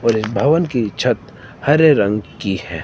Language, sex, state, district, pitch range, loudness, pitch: Hindi, male, Himachal Pradesh, Shimla, 100-135 Hz, -17 LUFS, 110 Hz